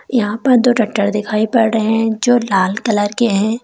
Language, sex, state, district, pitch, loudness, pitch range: Hindi, female, Uttar Pradesh, Lalitpur, 220 Hz, -15 LUFS, 210-235 Hz